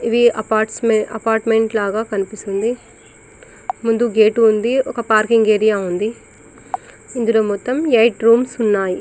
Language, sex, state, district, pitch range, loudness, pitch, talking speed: Telugu, female, Telangana, Karimnagar, 215-235 Hz, -16 LUFS, 225 Hz, 105 wpm